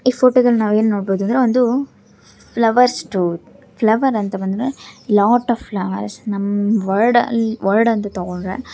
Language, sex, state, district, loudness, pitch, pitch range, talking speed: Kannada, female, Karnataka, Shimoga, -17 LUFS, 220 Hz, 200-240 Hz, 150 wpm